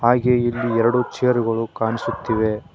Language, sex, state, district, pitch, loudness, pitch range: Kannada, male, Karnataka, Koppal, 115 Hz, -20 LUFS, 115-120 Hz